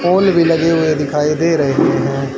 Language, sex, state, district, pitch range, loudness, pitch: Hindi, male, Haryana, Charkhi Dadri, 150-170 Hz, -14 LUFS, 160 Hz